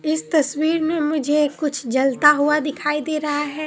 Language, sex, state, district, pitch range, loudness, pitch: Hindi, female, Bihar, Katihar, 290-310 Hz, -19 LUFS, 300 Hz